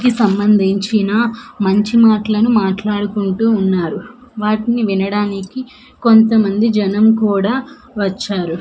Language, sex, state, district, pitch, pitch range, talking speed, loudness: Telugu, female, Andhra Pradesh, Manyam, 210 Hz, 200-230 Hz, 85 wpm, -15 LUFS